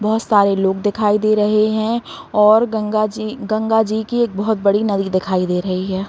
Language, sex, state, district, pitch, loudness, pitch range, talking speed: Hindi, female, Bihar, Saran, 215 Hz, -17 LUFS, 200-220 Hz, 185 wpm